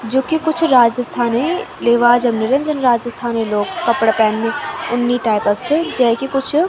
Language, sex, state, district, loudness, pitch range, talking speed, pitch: Garhwali, female, Uttarakhand, Tehri Garhwal, -16 LUFS, 230-275 Hz, 170 wpm, 240 Hz